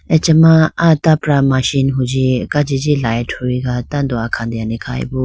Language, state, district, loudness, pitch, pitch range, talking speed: Idu Mishmi, Arunachal Pradesh, Lower Dibang Valley, -15 LUFS, 130 Hz, 120-150 Hz, 125 wpm